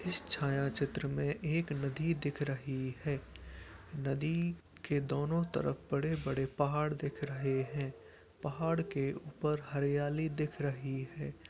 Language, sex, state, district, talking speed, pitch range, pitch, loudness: Hindi, male, Uttar Pradesh, Etah, 125 wpm, 135-155 Hz, 145 Hz, -36 LUFS